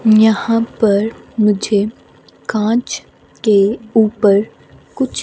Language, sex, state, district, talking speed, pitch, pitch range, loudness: Hindi, female, Himachal Pradesh, Shimla, 80 wpm, 215 Hz, 205-225 Hz, -15 LUFS